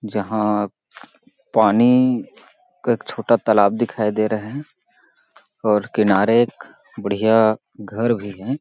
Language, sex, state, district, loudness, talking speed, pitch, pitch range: Hindi, male, Chhattisgarh, Balrampur, -19 LUFS, 120 wpm, 110 Hz, 105-115 Hz